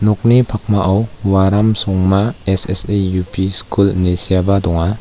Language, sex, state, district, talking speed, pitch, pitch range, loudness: Garo, male, Meghalaya, West Garo Hills, 120 wpm, 100 Hz, 95-105 Hz, -15 LUFS